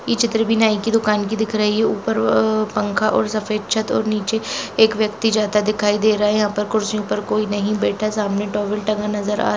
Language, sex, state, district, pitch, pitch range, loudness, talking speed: Hindi, female, Jharkhand, Jamtara, 210 Hz, 205-220 Hz, -19 LUFS, 215 wpm